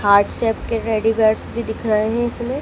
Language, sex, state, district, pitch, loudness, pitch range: Hindi, female, Madhya Pradesh, Dhar, 225 Hz, -19 LUFS, 220-235 Hz